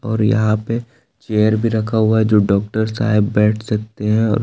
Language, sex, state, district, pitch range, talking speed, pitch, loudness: Hindi, male, Jharkhand, Palamu, 105-110 Hz, 205 wpm, 110 Hz, -17 LUFS